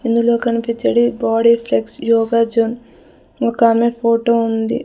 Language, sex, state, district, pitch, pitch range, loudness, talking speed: Telugu, female, Andhra Pradesh, Sri Satya Sai, 230 Hz, 230-235 Hz, -16 LUFS, 110 wpm